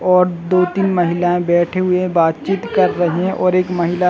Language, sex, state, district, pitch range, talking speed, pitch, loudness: Hindi, male, Chhattisgarh, Bilaspur, 175-185 Hz, 205 wpm, 180 Hz, -16 LUFS